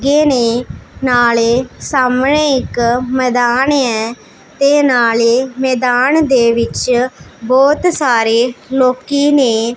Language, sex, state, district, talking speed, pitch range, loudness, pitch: Punjabi, female, Punjab, Pathankot, 100 wpm, 240-275 Hz, -13 LUFS, 255 Hz